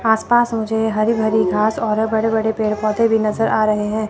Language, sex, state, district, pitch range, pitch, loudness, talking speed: Hindi, female, Chandigarh, Chandigarh, 215-220 Hz, 220 Hz, -17 LUFS, 220 wpm